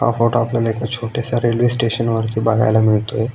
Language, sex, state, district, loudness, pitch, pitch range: Marathi, male, Maharashtra, Aurangabad, -17 LUFS, 115 Hz, 110-120 Hz